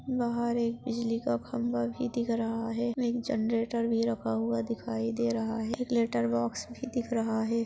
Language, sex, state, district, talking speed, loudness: Hindi, female, Maharashtra, Solapur, 190 wpm, -31 LUFS